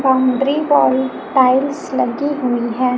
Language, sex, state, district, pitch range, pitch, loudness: Hindi, male, Chhattisgarh, Raipur, 255-285 Hz, 265 Hz, -16 LUFS